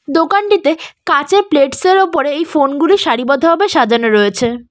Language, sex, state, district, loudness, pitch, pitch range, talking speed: Bengali, female, West Bengal, Cooch Behar, -12 LUFS, 305 Hz, 275-375 Hz, 155 wpm